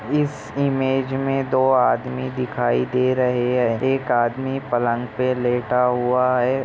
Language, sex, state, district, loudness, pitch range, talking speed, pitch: Hindi, male, Andhra Pradesh, Chittoor, -21 LUFS, 120-135 Hz, 145 wpm, 125 Hz